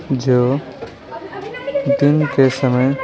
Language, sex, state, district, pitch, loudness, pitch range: Hindi, male, Bihar, Patna, 135 Hz, -16 LUFS, 130-145 Hz